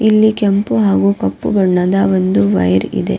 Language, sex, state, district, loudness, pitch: Kannada, female, Karnataka, Raichur, -13 LUFS, 180 Hz